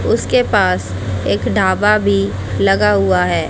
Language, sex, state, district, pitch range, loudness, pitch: Hindi, female, Haryana, Jhajjar, 95-105 Hz, -15 LUFS, 100 Hz